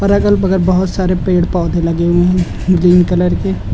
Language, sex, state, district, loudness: Hindi, male, Uttar Pradesh, Lucknow, -13 LUFS